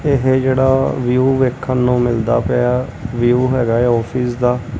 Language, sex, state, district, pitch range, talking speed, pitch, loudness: Punjabi, male, Punjab, Kapurthala, 120-130 Hz, 135 wpm, 125 Hz, -16 LUFS